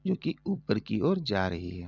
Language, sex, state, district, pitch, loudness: Hindi, male, Uttar Pradesh, Etah, 110 Hz, -30 LUFS